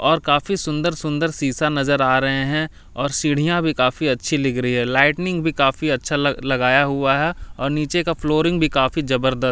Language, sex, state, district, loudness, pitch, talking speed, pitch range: Hindi, male, Delhi, New Delhi, -19 LUFS, 145 Hz, 195 wpm, 135-160 Hz